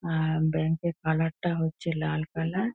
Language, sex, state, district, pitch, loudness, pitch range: Bengali, female, West Bengal, North 24 Parganas, 160 Hz, -28 LUFS, 160-170 Hz